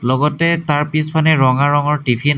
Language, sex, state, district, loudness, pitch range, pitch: Assamese, male, Assam, Hailakandi, -15 LUFS, 140-155 Hz, 145 Hz